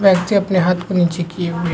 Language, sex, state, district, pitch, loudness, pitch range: Hindi, male, Bihar, Supaul, 180 Hz, -17 LUFS, 175-190 Hz